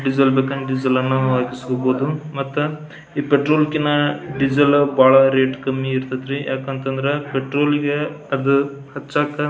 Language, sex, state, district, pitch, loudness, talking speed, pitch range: Kannada, male, Karnataka, Belgaum, 140 Hz, -19 LUFS, 115 wpm, 135-145 Hz